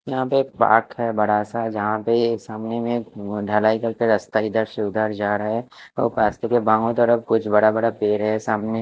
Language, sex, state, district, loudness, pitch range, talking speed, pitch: Hindi, male, Chandigarh, Chandigarh, -21 LUFS, 105-115 Hz, 210 wpm, 110 Hz